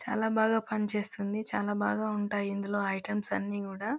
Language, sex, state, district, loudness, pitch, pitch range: Telugu, female, Telangana, Karimnagar, -30 LUFS, 210 Hz, 200-215 Hz